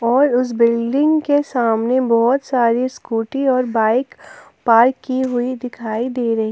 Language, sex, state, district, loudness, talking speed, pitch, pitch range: Hindi, female, Jharkhand, Palamu, -17 LUFS, 145 wpm, 245 Hz, 230-260 Hz